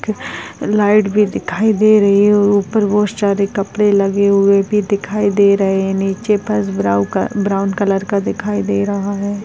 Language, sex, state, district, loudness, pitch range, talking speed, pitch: Hindi, female, Bihar, Kishanganj, -15 LUFS, 195-210 Hz, 185 wpm, 200 Hz